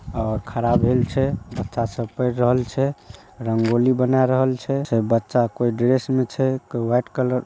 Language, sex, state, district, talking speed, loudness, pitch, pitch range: Maithili, male, Bihar, Saharsa, 185 wpm, -21 LUFS, 125 Hz, 115-130 Hz